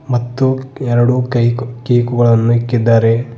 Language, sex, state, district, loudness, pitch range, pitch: Kannada, male, Karnataka, Bidar, -14 LUFS, 120-125 Hz, 120 Hz